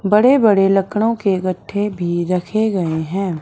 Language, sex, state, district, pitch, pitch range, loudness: Hindi, male, Punjab, Fazilka, 195 Hz, 180-210 Hz, -17 LUFS